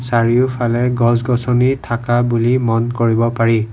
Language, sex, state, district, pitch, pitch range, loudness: Assamese, male, Assam, Kamrup Metropolitan, 120 Hz, 115-125 Hz, -16 LUFS